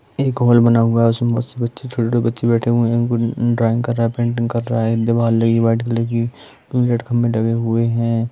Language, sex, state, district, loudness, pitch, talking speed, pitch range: Hindi, male, Bihar, East Champaran, -17 LUFS, 115 Hz, 240 wpm, 115-120 Hz